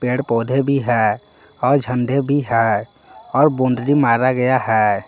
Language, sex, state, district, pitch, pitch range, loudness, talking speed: Hindi, male, Jharkhand, Palamu, 125 Hz, 115-140 Hz, -17 LUFS, 155 wpm